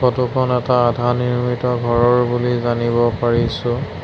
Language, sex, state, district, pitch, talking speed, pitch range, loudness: Assamese, male, Assam, Sonitpur, 120 Hz, 135 wpm, 120-125 Hz, -17 LUFS